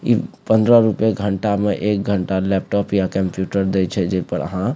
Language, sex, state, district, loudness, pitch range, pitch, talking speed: Maithili, male, Bihar, Supaul, -19 LUFS, 95-105 Hz, 100 Hz, 200 wpm